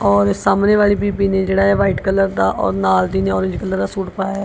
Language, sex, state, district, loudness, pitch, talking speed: Punjabi, female, Punjab, Kapurthala, -16 LUFS, 190 Hz, 255 wpm